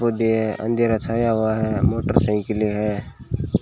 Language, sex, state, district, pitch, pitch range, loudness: Hindi, male, Rajasthan, Bikaner, 110 Hz, 105-115 Hz, -21 LUFS